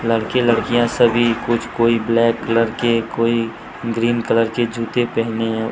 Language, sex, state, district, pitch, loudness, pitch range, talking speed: Hindi, male, Jharkhand, Deoghar, 115 Hz, -18 LUFS, 115-120 Hz, 155 wpm